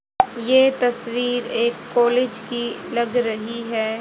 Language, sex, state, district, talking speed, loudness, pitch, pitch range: Hindi, female, Haryana, Rohtak, 120 wpm, -21 LUFS, 240 Hz, 235-245 Hz